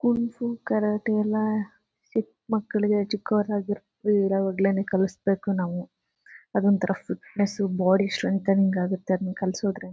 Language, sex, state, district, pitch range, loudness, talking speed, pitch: Kannada, female, Karnataka, Chamarajanagar, 190-215 Hz, -26 LUFS, 110 wpm, 200 Hz